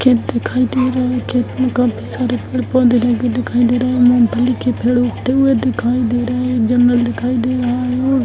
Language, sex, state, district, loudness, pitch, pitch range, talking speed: Hindi, female, Bihar, Darbhanga, -15 LUFS, 245 Hz, 245-255 Hz, 275 wpm